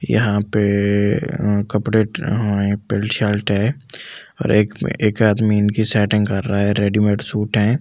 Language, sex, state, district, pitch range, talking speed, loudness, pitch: Hindi, male, Delhi, New Delhi, 100-110 Hz, 170 wpm, -18 LUFS, 105 Hz